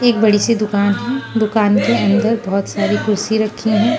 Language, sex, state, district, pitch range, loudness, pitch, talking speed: Hindi, female, Punjab, Pathankot, 205-225 Hz, -16 LUFS, 215 Hz, 180 wpm